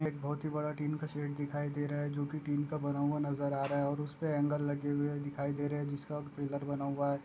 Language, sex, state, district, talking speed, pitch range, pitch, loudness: Hindi, male, Goa, North and South Goa, 275 wpm, 145-150 Hz, 145 Hz, -36 LUFS